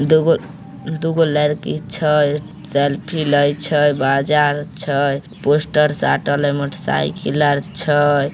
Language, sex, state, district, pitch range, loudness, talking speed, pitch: Maithili, male, Bihar, Samastipur, 145-155 Hz, -17 LUFS, 115 wpm, 150 Hz